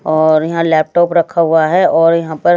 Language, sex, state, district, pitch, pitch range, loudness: Hindi, female, Haryana, Jhajjar, 165 Hz, 155-170 Hz, -12 LUFS